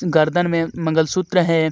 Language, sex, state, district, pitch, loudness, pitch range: Hindi, male, Jharkhand, Deoghar, 165 Hz, -18 LUFS, 160-175 Hz